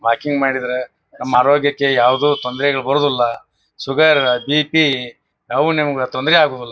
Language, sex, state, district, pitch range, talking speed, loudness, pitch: Kannada, male, Karnataka, Bijapur, 125-145 Hz, 115 wpm, -16 LUFS, 135 Hz